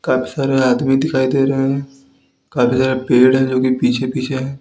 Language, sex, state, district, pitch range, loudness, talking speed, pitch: Hindi, male, Uttar Pradesh, Lalitpur, 130-135 Hz, -16 LUFS, 210 wpm, 130 Hz